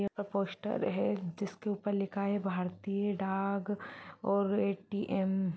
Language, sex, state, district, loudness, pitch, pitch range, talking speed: Hindi, female, Chhattisgarh, Sarguja, -34 LUFS, 200 Hz, 195-205 Hz, 130 wpm